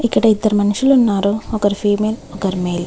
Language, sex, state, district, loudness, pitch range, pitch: Telugu, female, Andhra Pradesh, Visakhapatnam, -16 LUFS, 200-220 Hz, 205 Hz